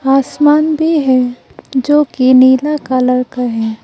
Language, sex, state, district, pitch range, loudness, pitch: Hindi, female, Arunachal Pradesh, Papum Pare, 255-295 Hz, -12 LUFS, 260 Hz